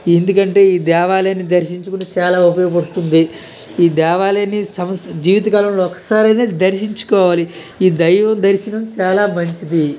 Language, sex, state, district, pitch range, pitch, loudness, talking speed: Telugu, male, Andhra Pradesh, Krishna, 175-200 Hz, 185 Hz, -14 LUFS, 115 wpm